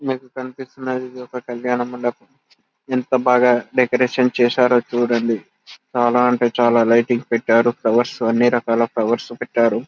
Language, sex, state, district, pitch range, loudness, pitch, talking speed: Telugu, male, Telangana, Karimnagar, 120-125 Hz, -18 LUFS, 120 Hz, 120 wpm